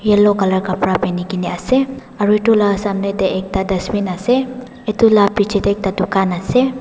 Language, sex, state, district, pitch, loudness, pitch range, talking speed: Nagamese, female, Nagaland, Dimapur, 200 Hz, -16 LUFS, 190-220 Hz, 195 wpm